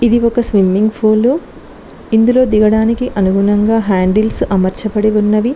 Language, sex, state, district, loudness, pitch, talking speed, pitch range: Telugu, female, Telangana, Mahabubabad, -13 LUFS, 215 Hz, 110 wpm, 205-235 Hz